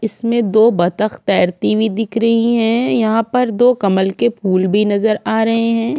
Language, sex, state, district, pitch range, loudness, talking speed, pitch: Hindi, female, Chhattisgarh, Korba, 210-230 Hz, -15 LUFS, 190 wpm, 225 Hz